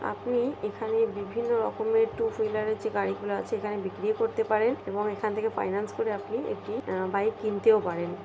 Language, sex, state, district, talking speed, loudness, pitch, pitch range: Bengali, female, West Bengal, North 24 Parganas, 190 wpm, -29 LUFS, 215 Hz, 205-240 Hz